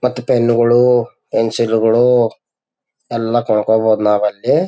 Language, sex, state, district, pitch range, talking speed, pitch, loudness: Kannada, male, Karnataka, Bellary, 110-120 Hz, 105 wpm, 115 Hz, -14 LUFS